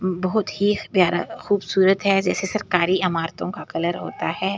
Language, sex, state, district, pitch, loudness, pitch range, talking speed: Hindi, female, Delhi, New Delhi, 190 Hz, -21 LUFS, 180-205 Hz, 185 wpm